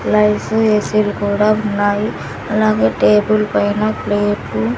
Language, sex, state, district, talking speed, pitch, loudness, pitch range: Telugu, female, Andhra Pradesh, Sri Satya Sai, 115 wpm, 205 Hz, -15 LUFS, 145-215 Hz